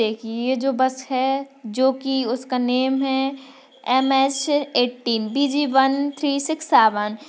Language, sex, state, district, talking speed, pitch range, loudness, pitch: Hindi, female, Maharashtra, Pune, 150 wpm, 250-275 Hz, -21 LUFS, 265 Hz